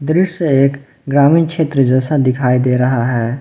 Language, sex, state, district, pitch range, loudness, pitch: Hindi, male, Jharkhand, Ranchi, 125-155 Hz, -14 LUFS, 135 Hz